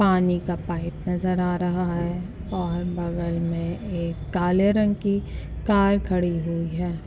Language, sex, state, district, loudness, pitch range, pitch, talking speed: Hindi, female, Uttar Pradesh, Muzaffarnagar, -25 LUFS, 170-185 Hz, 175 Hz, 155 wpm